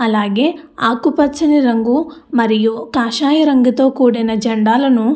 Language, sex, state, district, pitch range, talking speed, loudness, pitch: Telugu, female, Andhra Pradesh, Anantapur, 230-290 Hz, 105 wpm, -14 LUFS, 250 Hz